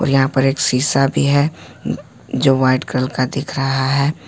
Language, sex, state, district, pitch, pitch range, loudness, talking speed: Hindi, male, Jharkhand, Ranchi, 135 Hz, 130-140 Hz, -17 LUFS, 195 wpm